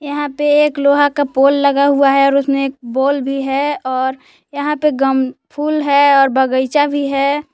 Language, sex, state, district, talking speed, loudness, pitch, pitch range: Hindi, female, Jharkhand, Palamu, 200 wpm, -14 LUFS, 280 Hz, 270-290 Hz